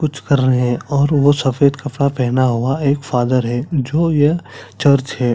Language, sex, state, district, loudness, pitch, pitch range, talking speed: Hindi, male, Chhattisgarh, Sarguja, -16 LUFS, 140 Hz, 130-145 Hz, 200 wpm